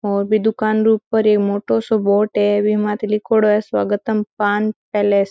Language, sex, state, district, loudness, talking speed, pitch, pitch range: Marwari, female, Rajasthan, Nagaur, -17 LUFS, 190 wpm, 210 Hz, 205-215 Hz